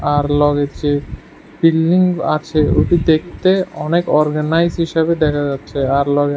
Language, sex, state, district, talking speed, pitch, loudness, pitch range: Bengali, male, Tripura, West Tripura, 140 wpm, 155 Hz, -16 LUFS, 145-165 Hz